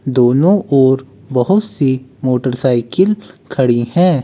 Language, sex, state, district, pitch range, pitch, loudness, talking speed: Hindi, male, Uttar Pradesh, Lucknow, 125-175 Hz, 130 Hz, -14 LUFS, 100 wpm